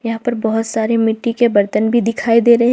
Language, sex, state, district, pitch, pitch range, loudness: Hindi, female, Jharkhand, Ranchi, 230 Hz, 225-235 Hz, -15 LUFS